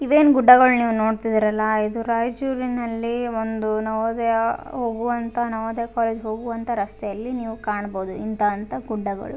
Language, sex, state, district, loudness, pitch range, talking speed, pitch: Kannada, female, Karnataka, Raichur, -22 LUFS, 215-240 Hz, 120 wpm, 230 Hz